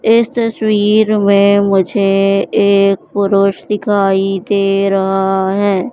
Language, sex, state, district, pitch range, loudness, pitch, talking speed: Hindi, female, Madhya Pradesh, Katni, 195-210 Hz, -13 LUFS, 200 Hz, 100 wpm